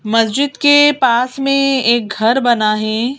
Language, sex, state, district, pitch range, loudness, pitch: Hindi, female, Madhya Pradesh, Bhopal, 225-275 Hz, -13 LUFS, 240 Hz